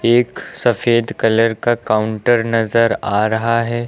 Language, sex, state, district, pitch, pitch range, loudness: Hindi, male, Uttar Pradesh, Lucknow, 115 Hz, 110-120 Hz, -16 LUFS